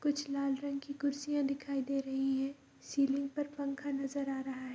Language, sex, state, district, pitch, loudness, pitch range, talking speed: Hindi, female, Bihar, Kishanganj, 275 Hz, -36 LUFS, 270-285 Hz, 200 wpm